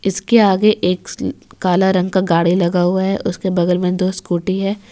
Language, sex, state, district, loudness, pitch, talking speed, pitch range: Hindi, female, Jharkhand, Ranchi, -16 LUFS, 185 Hz, 195 wpm, 180-195 Hz